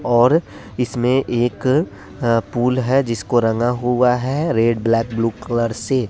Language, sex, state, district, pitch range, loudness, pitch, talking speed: Hindi, male, Bihar, West Champaran, 115-125 Hz, -18 LUFS, 120 Hz, 140 wpm